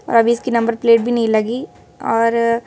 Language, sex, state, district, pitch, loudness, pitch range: Hindi, female, Madhya Pradesh, Bhopal, 230 Hz, -16 LUFS, 230-235 Hz